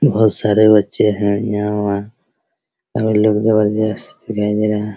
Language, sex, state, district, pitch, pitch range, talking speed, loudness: Hindi, male, Bihar, Araria, 105 Hz, 105-110 Hz, 135 wpm, -16 LUFS